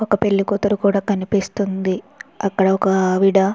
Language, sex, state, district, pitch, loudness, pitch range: Telugu, female, Andhra Pradesh, Chittoor, 195 Hz, -18 LUFS, 190-205 Hz